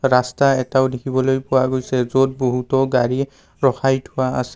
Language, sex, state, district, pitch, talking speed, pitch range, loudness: Assamese, male, Assam, Kamrup Metropolitan, 130 Hz, 145 wpm, 125-135 Hz, -19 LUFS